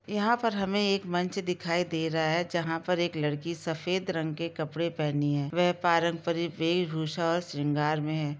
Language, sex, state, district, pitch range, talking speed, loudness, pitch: Hindi, female, Jharkhand, Jamtara, 155-180 Hz, 185 wpm, -29 LUFS, 170 Hz